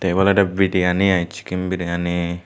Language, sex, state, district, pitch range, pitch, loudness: Chakma, male, Tripura, Dhalai, 85-95 Hz, 90 Hz, -19 LUFS